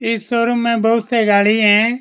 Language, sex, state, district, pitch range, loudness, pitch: Hindi, male, Bihar, Saran, 215-235 Hz, -14 LUFS, 230 Hz